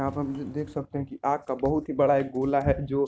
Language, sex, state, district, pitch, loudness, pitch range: Hindi, male, Bihar, Sitamarhi, 140 Hz, -27 LUFS, 135-145 Hz